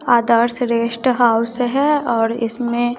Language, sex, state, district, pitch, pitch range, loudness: Hindi, female, Bihar, West Champaran, 240 Hz, 230-245 Hz, -17 LUFS